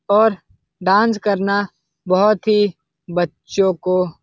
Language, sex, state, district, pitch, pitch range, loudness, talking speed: Hindi, male, Bihar, Lakhisarai, 190 Hz, 175-205 Hz, -18 LUFS, 115 wpm